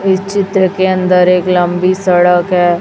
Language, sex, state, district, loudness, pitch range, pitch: Hindi, female, Chhattisgarh, Raipur, -11 LUFS, 180-190 Hz, 185 Hz